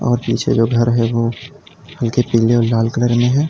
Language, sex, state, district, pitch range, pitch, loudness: Hindi, male, Uttar Pradesh, Lalitpur, 115-125 Hz, 120 Hz, -16 LUFS